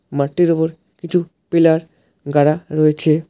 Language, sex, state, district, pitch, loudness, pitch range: Bengali, male, West Bengal, Alipurduar, 160 Hz, -17 LUFS, 155-170 Hz